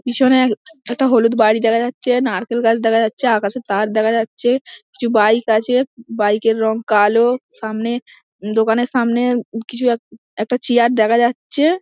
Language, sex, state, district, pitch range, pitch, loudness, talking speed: Bengali, female, West Bengal, Dakshin Dinajpur, 220-250 Hz, 235 Hz, -16 LUFS, 150 wpm